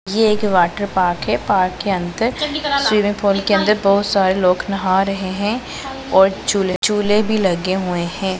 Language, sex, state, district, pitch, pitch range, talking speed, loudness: Hindi, female, Punjab, Pathankot, 195 Hz, 185-210 Hz, 180 wpm, -17 LUFS